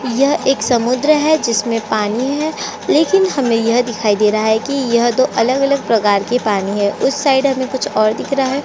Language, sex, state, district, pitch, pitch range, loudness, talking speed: Hindi, female, Chhattisgarh, Korba, 250 Hz, 220-275 Hz, -15 LUFS, 210 wpm